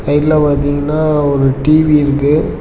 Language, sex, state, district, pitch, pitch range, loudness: Tamil, male, Tamil Nadu, Namakkal, 145 Hz, 145-155 Hz, -12 LUFS